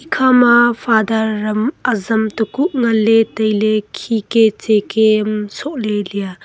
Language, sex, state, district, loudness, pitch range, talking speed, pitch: Wancho, female, Arunachal Pradesh, Longding, -15 LUFS, 215-235 Hz, 110 wpm, 220 Hz